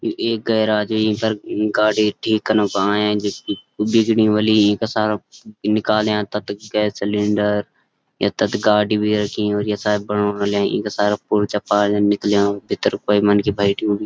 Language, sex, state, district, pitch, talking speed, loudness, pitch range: Garhwali, male, Uttarakhand, Uttarkashi, 105 Hz, 160 wpm, -19 LUFS, 105-110 Hz